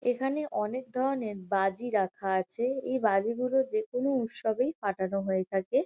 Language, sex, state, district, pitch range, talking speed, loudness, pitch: Bengali, female, West Bengal, Kolkata, 195-260 Hz, 135 wpm, -30 LUFS, 230 Hz